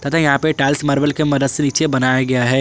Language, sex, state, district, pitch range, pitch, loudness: Hindi, male, Jharkhand, Garhwa, 135-150 Hz, 140 Hz, -16 LUFS